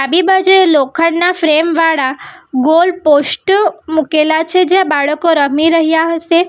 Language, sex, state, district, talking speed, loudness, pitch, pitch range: Gujarati, female, Gujarat, Valsad, 130 wpm, -11 LUFS, 325 Hz, 305-360 Hz